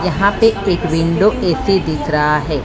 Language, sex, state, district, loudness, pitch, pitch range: Hindi, female, Maharashtra, Mumbai Suburban, -15 LUFS, 175 Hz, 150-195 Hz